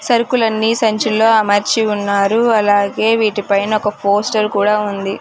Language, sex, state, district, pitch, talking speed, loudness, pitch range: Telugu, female, Andhra Pradesh, Sri Satya Sai, 215 Hz, 125 wpm, -14 LUFS, 205-225 Hz